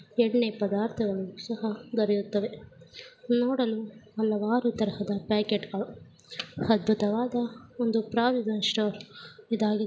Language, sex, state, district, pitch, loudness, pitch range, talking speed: Kannada, female, Karnataka, Gulbarga, 220 Hz, -28 LUFS, 210-235 Hz, 80 wpm